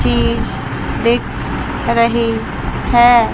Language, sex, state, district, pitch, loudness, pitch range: Hindi, female, Chandigarh, Chandigarh, 235 Hz, -16 LUFS, 230-240 Hz